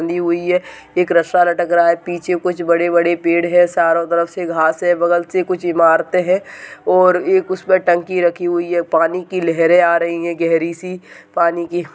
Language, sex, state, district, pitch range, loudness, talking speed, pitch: Hindi, male, Uttar Pradesh, Budaun, 170-180 Hz, -16 LUFS, 205 wpm, 175 Hz